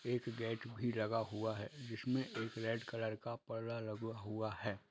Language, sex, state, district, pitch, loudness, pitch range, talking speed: Hindi, male, Bihar, Lakhisarai, 115 Hz, -42 LUFS, 110-115 Hz, 185 wpm